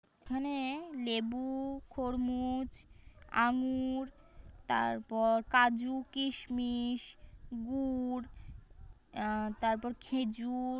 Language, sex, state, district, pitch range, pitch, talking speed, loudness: Bengali, female, West Bengal, Kolkata, 235-265 Hz, 250 Hz, 55 wpm, -35 LUFS